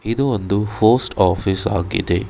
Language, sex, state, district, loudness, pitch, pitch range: Kannada, male, Karnataka, Bangalore, -18 LUFS, 100 Hz, 95-115 Hz